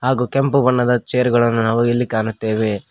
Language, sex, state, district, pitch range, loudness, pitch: Kannada, male, Karnataka, Koppal, 110-125 Hz, -17 LUFS, 120 Hz